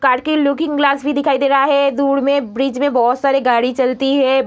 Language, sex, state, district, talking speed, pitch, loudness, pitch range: Hindi, female, Bihar, Lakhisarai, 240 wpm, 275 Hz, -15 LUFS, 265-280 Hz